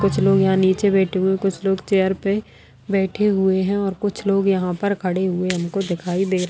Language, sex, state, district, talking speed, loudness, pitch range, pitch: Hindi, female, Bihar, Jamui, 240 wpm, -20 LUFS, 185-195 Hz, 190 Hz